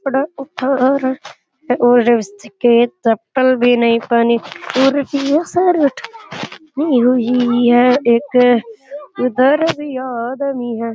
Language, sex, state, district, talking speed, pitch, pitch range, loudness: Rajasthani, male, Rajasthan, Churu, 105 wpm, 250 Hz, 240-275 Hz, -15 LUFS